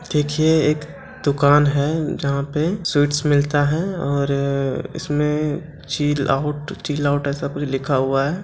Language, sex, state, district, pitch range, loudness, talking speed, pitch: Angika, male, Bihar, Begusarai, 140-155 Hz, -20 LUFS, 140 wpm, 145 Hz